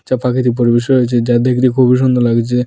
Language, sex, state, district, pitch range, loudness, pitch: Bengali, male, Tripura, West Tripura, 120-130 Hz, -13 LUFS, 125 Hz